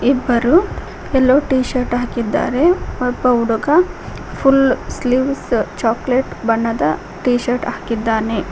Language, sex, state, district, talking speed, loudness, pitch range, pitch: Kannada, female, Karnataka, Koppal, 85 wpm, -17 LUFS, 230-265 Hz, 250 Hz